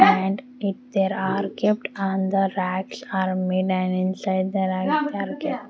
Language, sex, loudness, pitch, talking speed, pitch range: English, female, -24 LUFS, 195 Hz, 160 wpm, 190-205 Hz